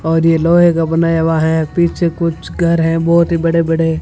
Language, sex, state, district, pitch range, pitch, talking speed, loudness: Hindi, female, Rajasthan, Bikaner, 165-170 Hz, 165 Hz, 225 wpm, -13 LUFS